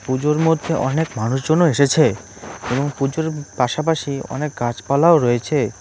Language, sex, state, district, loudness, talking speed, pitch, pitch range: Bengali, male, West Bengal, Cooch Behar, -19 LUFS, 115 wpm, 140 Hz, 125-160 Hz